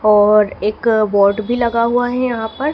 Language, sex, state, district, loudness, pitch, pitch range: Hindi, female, Madhya Pradesh, Dhar, -15 LUFS, 220 Hz, 210-240 Hz